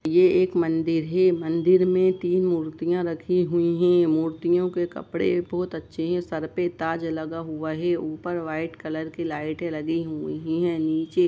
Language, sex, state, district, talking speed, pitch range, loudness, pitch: Hindi, male, Jharkhand, Sahebganj, 170 wpm, 160-180 Hz, -24 LUFS, 170 Hz